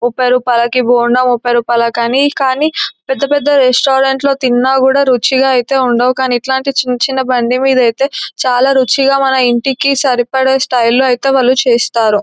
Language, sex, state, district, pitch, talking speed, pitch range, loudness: Telugu, female, Telangana, Nalgonda, 260 Hz, 155 wpm, 245-270 Hz, -11 LUFS